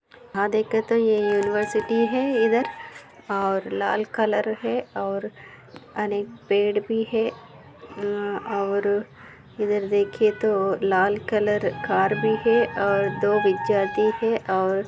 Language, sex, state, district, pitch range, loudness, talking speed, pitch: Hindi, female, Maharashtra, Aurangabad, 200-225 Hz, -23 LUFS, 125 wpm, 210 Hz